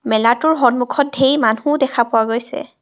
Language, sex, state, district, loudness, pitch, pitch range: Assamese, female, Assam, Kamrup Metropolitan, -16 LUFS, 250 Hz, 230-285 Hz